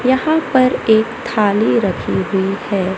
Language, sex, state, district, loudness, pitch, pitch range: Hindi, male, Madhya Pradesh, Katni, -16 LUFS, 220 Hz, 195-255 Hz